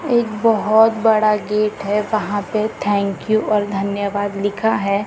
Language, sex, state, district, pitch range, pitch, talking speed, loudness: Hindi, female, Maharashtra, Gondia, 200-220 Hz, 210 Hz, 140 wpm, -18 LUFS